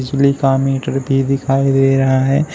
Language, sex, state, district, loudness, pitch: Hindi, male, Uttar Pradesh, Shamli, -15 LUFS, 135 Hz